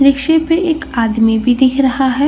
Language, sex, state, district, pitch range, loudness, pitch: Hindi, female, Bihar, Katihar, 245-320 Hz, -13 LUFS, 270 Hz